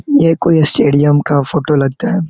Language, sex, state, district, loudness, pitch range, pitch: Hindi, male, Chhattisgarh, Korba, -12 LUFS, 145-165 Hz, 150 Hz